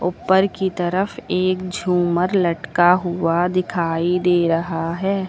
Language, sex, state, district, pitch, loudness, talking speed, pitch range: Hindi, female, Uttar Pradesh, Lucknow, 180 Hz, -19 LUFS, 125 wpm, 170-185 Hz